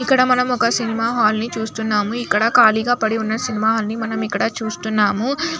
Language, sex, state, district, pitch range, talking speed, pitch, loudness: Telugu, female, Andhra Pradesh, Anantapur, 220-245 Hz, 195 wpm, 225 Hz, -18 LUFS